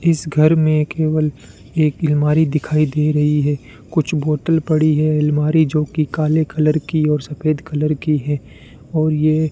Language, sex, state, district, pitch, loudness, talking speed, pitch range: Hindi, male, Rajasthan, Bikaner, 155 Hz, -17 LUFS, 175 wpm, 150-155 Hz